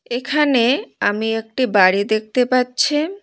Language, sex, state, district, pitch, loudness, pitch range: Bengali, female, West Bengal, Cooch Behar, 250 Hz, -17 LUFS, 220-275 Hz